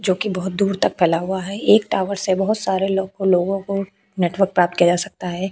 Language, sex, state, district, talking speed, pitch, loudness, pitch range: Hindi, female, Uttar Pradesh, Jyotiba Phule Nagar, 240 wpm, 190 Hz, -19 LUFS, 180-195 Hz